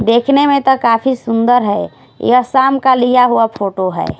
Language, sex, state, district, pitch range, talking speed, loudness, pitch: Hindi, female, Odisha, Khordha, 225-265 Hz, 185 wpm, -12 LUFS, 245 Hz